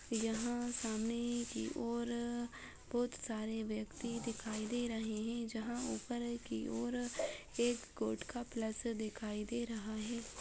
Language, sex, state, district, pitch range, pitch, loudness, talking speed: Hindi, female, Uttar Pradesh, Deoria, 220-240 Hz, 235 Hz, -40 LUFS, 135 wpm